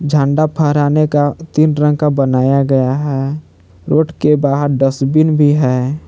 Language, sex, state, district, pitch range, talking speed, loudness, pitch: Hindi, male, Jharkhand, Palamu, 135-150 Hz, 150 wpm, -13 LUFS, 145 Hz